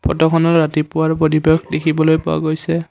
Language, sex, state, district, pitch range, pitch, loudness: Assamese, male, Assam, Kamrup Metropolitan, 155-165 Hz, 160 Hz, -16 LUFS